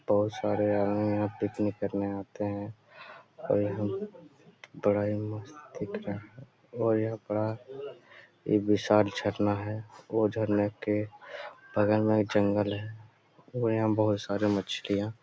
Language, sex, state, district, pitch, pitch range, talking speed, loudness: Hindi, male, Jharkhand, Jamtara, 105 Hz, 105-110 Hz, 140 wpm, -30 LUFS